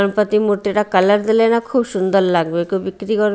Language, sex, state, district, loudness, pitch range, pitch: Bengali, female, Odisha, Malkangiri, -16 LUFS, 190-215 Hz, 205 Hz